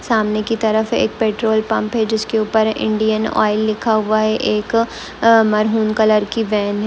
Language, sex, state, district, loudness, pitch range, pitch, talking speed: Hindi, female, West Bengal, Malda, -16 LUFS, 215-220 Hz, 220 Hz, 175 wpm